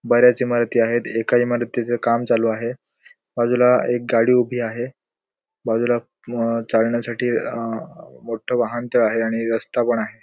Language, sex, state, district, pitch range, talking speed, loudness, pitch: Marathi, male, Goa, North and South Goa, 115-120 Hz, 145 wpm, -20 LUFS, 120 Hz